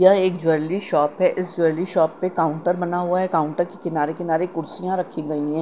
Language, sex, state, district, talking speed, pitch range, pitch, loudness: Hindi, female, Chandigarh, Chandigarh, 225 wpm, 160-180 Hz, 175 Hz, -22 LUFS